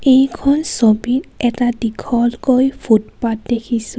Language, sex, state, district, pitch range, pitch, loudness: Assamese, female, Assam, Kamrup Metropolitan, 230-260 Hz, 240 Hz, -16 LUFS